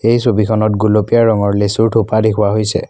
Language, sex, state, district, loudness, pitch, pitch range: Assamese, male, Assam, Kamrup Metropolitan, -13 LUFS, 110 Hz, 105-115 Hz